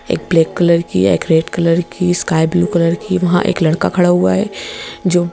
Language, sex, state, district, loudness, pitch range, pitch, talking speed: Hindi, female, Madhya Pradesh, Bhopal, -14 LUFS, 160-175 Hz, 170 Hz, 215 wpm